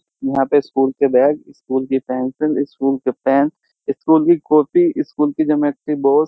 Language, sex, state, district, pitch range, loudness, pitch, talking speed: Hindi, male, Uttar Pradesh, Jyotiba Phule Nagar, 135-155 Hz, -17 LUFS, 140 Hz, 180 wpm